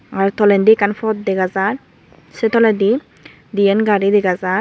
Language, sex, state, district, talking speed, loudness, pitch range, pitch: Chakma, female, Tripura, Unakoti, 155 wpm, -15 LUFS, 195-220 Hz, 205 Hz